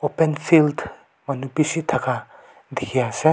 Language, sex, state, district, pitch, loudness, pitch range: Nagamese, male, Nagaland, Kohima, 155 Hz, -21 LUFS, 140-160 Hz